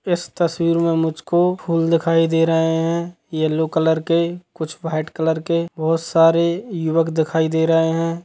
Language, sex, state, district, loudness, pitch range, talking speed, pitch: Hindi, male, Chhattisgarh, Sukma, -19 LUFS, 160-170 Hz, 165 wpm, 165 Hz